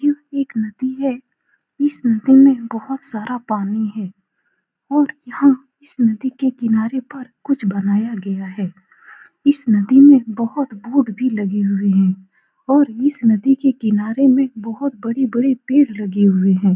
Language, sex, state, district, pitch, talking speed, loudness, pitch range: Hindi, female, Bihar, Saran, 245 Hz, 155 wpm, -17 LUFS, 210-270 Hz